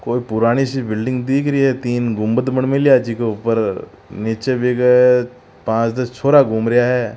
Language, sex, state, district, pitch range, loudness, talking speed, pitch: Marwari, male, Rajasthan, Churu, 115-130 Hz, -16 LUFS, 190 wpm, 125 Hz